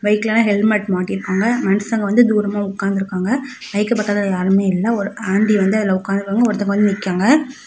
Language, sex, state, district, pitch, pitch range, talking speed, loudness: Tamil, female, Tamil Nadu, Kanyakumari, 205 Hz, 195-215 Hz, 150 wpm, -17 LUFS